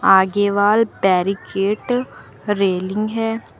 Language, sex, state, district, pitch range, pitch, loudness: Hindi, female, Uttar Pradesh, Lucknow, 195-220 Hz, 205 Hz, -18 LUFS